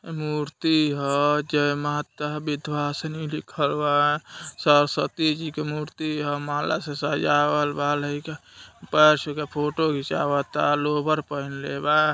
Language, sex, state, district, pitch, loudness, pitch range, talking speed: Hindi, male, Uttar Pradesh, Deoria, 150 Hz, -24 LUFS, 145-155 Hz, 125 wpm